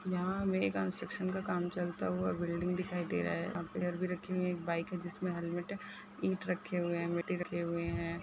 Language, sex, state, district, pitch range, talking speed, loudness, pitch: Hindi, female, Jharkhand, Sahebganj, 170-185 Hz, 235 wpm, -37 LUFS, 180 Hz